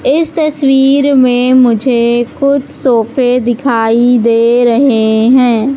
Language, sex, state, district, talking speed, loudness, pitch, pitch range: Hindi, female, Madhya Pradesh, Katni, 105 wpm, -10 LUFS, 250 Hz, 235-270 Hz